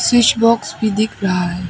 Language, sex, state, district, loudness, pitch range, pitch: Hindi, female, Arunachal Pradesh, Papum Pare, -16 LUFS, 180-230 Hz, 215 Hz